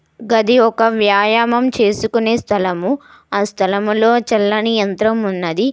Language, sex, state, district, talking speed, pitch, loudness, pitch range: Telugu, female, Telangana, Hyderabad, 105 wpm, 220 Hz, -15 LUFS, 205-235 Hz